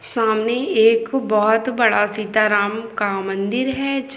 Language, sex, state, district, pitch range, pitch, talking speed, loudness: Hindi, female, Chhattisgarh, Balrampur, 210-245 Hz, 225 Hz, 130 wpm, -18 LUFS